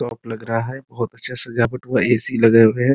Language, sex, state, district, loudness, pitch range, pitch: Hindi, male, Bihar, Muzaffarpur, -18 LUFS, 115-125 Hz, 115 Hz